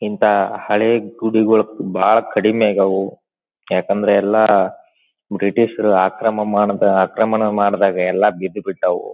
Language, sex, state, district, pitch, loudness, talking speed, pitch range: Kannada, male, Karnataka, Dharwad, 105 Hz, -16 LUFS, 100 wpm, 100-110 Hz